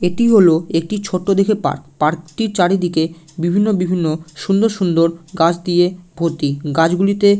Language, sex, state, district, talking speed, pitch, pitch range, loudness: Bengali, male, West Bengal, Malda, 145 wpm, 175 Hz, 165-195 Hz, -16 LUFS